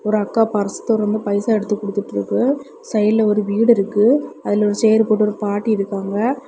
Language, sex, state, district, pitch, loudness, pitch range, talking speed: Tamil, female, Tamil Nadu, Kanyakumari, 210 Hz, -18 LUFS, 205-220 Hz, 175 wpm